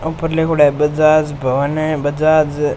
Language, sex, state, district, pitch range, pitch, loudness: Rajasthani, male, Rajasthan, Churu, 145-155 Hz, 155 Hz, -15 LUFS